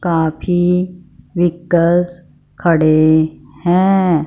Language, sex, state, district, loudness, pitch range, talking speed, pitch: Hindi, female, Punjab, Fazilka, -14 LUFS, 160-180 Hz, 55 wpm, 175 Hz